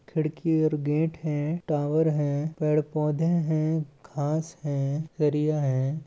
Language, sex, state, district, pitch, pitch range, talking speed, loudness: Chhattisgarhi, male, Chhattisgarh, Balrampur, 155 Hz, 150-160 Hz, 130 wpm, -27 LUFS